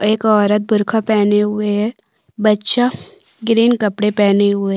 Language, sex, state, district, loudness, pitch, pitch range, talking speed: Hindi, female, Maharashtra, Aurangabad, -15 LUFS, 210 Hz, 205-220 Hz, 140 wpm